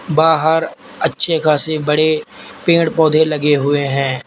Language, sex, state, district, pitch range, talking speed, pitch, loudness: Hindi, male, Uttar Pradesh, Lalitpur, 150-160 Hz, 125 wpm, 155 Hz, -15 LUFS